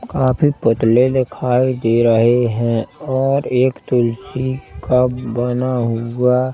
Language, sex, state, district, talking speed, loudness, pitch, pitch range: Hindi, male, Madhya Pradesh, Katni, 110 wpm, -17 LUFS, 125 Hz, 115-130 Hz